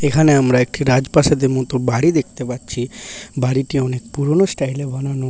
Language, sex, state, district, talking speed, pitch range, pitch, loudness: Bengali, male, West Bengal, Paschim Medinipur, 160 wpm, 125-145 Hz, 135 Hz, -17 LUFS